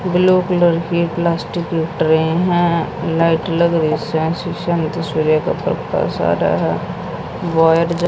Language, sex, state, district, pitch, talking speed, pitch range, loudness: Hindi, female, Haryana, Jhajjar, 165 Hz, 165 wpm, 160-175 Hz, -17 LUFS